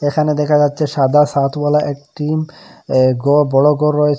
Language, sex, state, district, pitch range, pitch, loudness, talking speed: Bengali, male, Assam, Hailakandi, 145-150 Hz, 150 Hz, -15 LUFS, 155 wpm